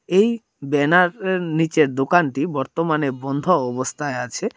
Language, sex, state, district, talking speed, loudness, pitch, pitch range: Bengali, male, Tripura, Dhalai, 120 wpm, -20 LUFS, 150 Hz, 135-175 Hz